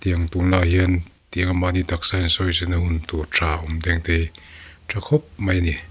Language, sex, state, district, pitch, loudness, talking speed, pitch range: Mizo, male, Mizoram, Aizawl, 85 Hz, -21 LUFS, 205 wpm, 85-90 Hz